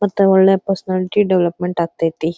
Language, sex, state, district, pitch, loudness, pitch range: Kannada, female, Karnataka, Dharwad, 185 Hz, -16 LUFS, 170-195 Hz